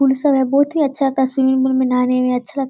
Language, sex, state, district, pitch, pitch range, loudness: Hindi, female, Bihar, Kishanganj, 265 Hz, 260-275 Hz, -16 LUFS